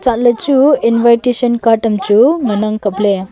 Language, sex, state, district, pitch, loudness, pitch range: Wancho, female, Arunachal Pradesh, Longding, 230 Hz, -12 LUFS, 210-245 Hz